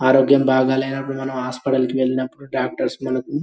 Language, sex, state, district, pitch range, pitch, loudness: Telugu, male, Telangana, Karimnagar, 130-135 Hz, 130 Hz, -20 LUFS